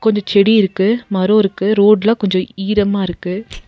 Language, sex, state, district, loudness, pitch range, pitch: Tamil, female, Tamil Nadu, Nilgiris, -14 LUFS, 195-215 Hz, 205 Hz